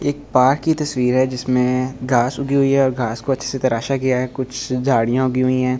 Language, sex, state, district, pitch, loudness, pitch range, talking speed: Hindi, male, Delhi, New Delhi, 130 Hz, -18 LUFS, 125-135 Hz, 240 wpm